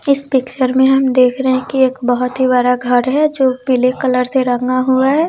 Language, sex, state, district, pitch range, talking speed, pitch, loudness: Hindi, female, Bihar, West Champaran, 250-265 Hz, 240 wpm, 260 Hz, -14 LUFS